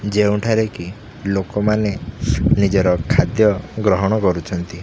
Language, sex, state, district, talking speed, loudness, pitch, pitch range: Odia, male, Odisha, Khordha, 85 wpm, -18 LUFS, 105 Hz, 95-110 Hz